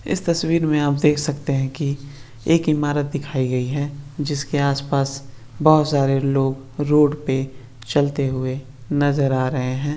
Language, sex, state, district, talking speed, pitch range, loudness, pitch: Hindi, male, Bihar, East Champaran, 155 wpm, 135-150 Hz, -20 LUFS, 140 Hz